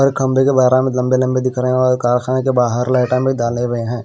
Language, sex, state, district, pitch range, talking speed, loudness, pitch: Hindi, male, Maharashtra, Washim, 125-130 Hz, 235 wpm, -15 LUFS, 125 Hz